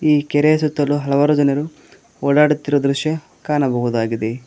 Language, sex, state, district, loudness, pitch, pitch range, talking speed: Kannada, male, Karnataka, Koppal, -17 LUFS, 145 Hz, 140-150 Hz, 105 wpm